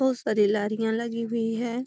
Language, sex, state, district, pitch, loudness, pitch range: Magahi, female, Bihar, Gaya, 230 Hz, -26 LUFS, 220-235 Hz